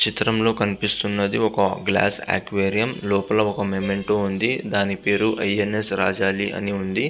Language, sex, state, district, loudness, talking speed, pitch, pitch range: Telugu, male, Andhra Pradesh, Visakhapatnam, -21 LUFS, 145 wpm, 100 Hz, 100-105 Hz